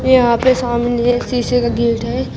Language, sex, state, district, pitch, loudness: Hindi, female, Uttar Pradesh, Shamli, 240 Hz, -15 LUFS